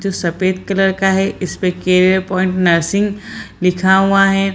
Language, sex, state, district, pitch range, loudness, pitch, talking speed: Hindi, female, Bihar, Samastipur, 185-195 Hz, -15 LUFS, 190 Hz, 160 wpm